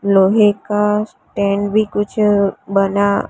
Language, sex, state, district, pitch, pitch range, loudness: Hindi, female, Gujarat, Gandhinagar, 205 Hz, 200-210 Hz, -16 LUFS